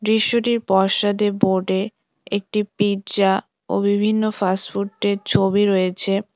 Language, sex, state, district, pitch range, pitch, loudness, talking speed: Bengali, female, West Bengal, Cooch Behar, 195-210 Hz, 200 Hz, -19 LUFS, 105 wpm